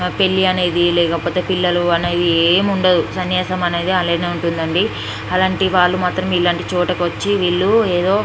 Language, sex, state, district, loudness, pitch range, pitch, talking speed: Telugu, female, Andhra Pradesh, Srikakulam, -16 LUFS, 175-185 Hz, 180 Hz, 130 wpm